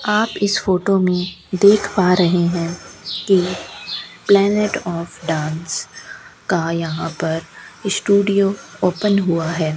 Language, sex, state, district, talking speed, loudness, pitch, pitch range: Hindi, female, Rajasthan, Bikaner, 115 wpm, -18 LUFS, 185 Hz, 170-200 Hz